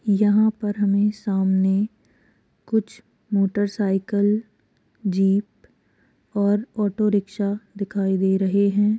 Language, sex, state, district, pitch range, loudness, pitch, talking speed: Hindi, female, Bihar, Purnia, 200-210 Hz, -22 LUFS, 205 Hz, 85 wpm